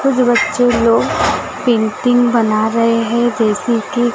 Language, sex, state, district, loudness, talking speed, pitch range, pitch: Hindi, female, Maharashtra, Gondia, -14 LUFS, 130 wpm, 225-245 Hz, 235 Hz